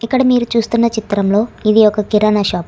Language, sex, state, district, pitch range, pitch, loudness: Telugu, female, Telangana, Hyderabad, 210-235 Hz, 215 Hz, -14 LUFS